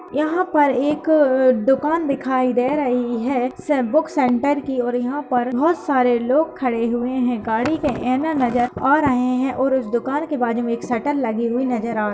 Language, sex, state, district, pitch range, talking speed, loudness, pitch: Hindi, female, Uttar Pradesh, Hamirpur, 245-290 Hz, 200 wpm, -19 LUFS, 260 Hz